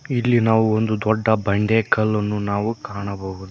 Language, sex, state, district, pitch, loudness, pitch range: Kannada, male, Karnataka, Koppal, 110 Hz, -20 LUFS, 100-110 Hz